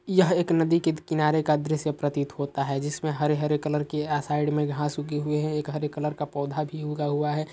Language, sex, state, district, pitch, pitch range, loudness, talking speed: Hindi, male, Uttar Pradesh, Hamirpur, 150 Hz, 150-155 Hz, -26 LUFS, 245 wpm